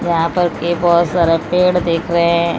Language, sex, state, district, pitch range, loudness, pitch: Hindi, female, Odisha, Malkangiri, 170-175 Hz, -15 LUFS, 170 Hz